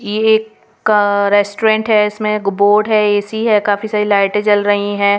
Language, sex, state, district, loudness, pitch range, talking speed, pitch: Hindi, female, Punjab, Pathankot, -14 LUFS, 205-215 Hz, 175 wpm, 210 Hz